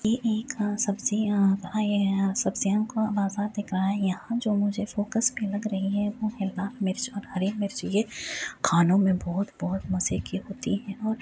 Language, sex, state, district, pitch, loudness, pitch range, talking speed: Hindi, female, Uttar Pradesh, Hamirpur, 205 Hz, -27 LUFS, 195-215 Hz, 185 wpm